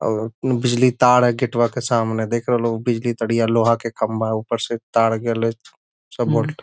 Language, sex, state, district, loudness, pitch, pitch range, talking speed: Magahi, male, Bihar, Gaya, -19 LUFS, 115 Hz, 115-120 Hz, 200 wpm